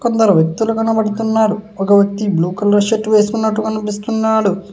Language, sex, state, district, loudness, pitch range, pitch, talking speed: Telugu, male, Telangana, Hyderabad, -15 LUFS, 200-220 Hz, 215 Hz, 125 wpm